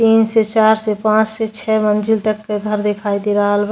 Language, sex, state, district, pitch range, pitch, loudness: Bhojpuri, female, Uttar Pradesh, Deoria, 210-220 Hz, 215 Hz, -16 LUFS